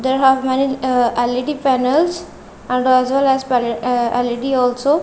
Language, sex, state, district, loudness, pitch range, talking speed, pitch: English, female, Punjab, Kapurthala, -17 LUFS, 245-270 Hz, 165 wpm, 260 Hz